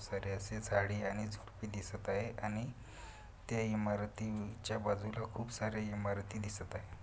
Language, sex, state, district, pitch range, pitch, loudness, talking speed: Marathi, male, Maharashtra, Pune, 100-110 Hz, 105 Hz, -40 LUFS, 135 wpm